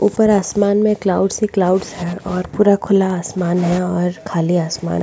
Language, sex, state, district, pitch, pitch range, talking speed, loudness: Hindi, female, Goa, North and South Goa, 185 Hz, 175-205 Hz, 190 wpm, -17 LUFS